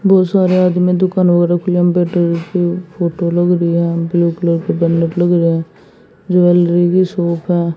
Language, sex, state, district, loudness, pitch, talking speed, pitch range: Hindi, female, Haryana, Jhajjar, -14 LUFS, 175 Hz, 145 wpm, 170-180 Hz